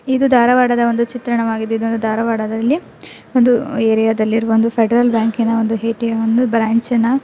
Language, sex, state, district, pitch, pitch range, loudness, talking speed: Kannada, female, Karnataka, Dharwad, 230 Hz, 225-245 Hz, -16 LUFS, 160 wpm